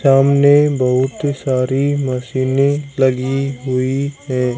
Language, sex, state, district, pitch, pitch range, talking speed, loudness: Hindi, male, Haryana, Jhajjar, 135 Hz, 130-140 Hz, 90 wpm, -16 LUFS